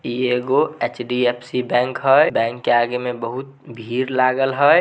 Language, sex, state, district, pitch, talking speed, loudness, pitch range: Maithili, male, Bihar, Samastipur, 125 Hz, 160 wpm, -19 LUFS, 120-130 Hz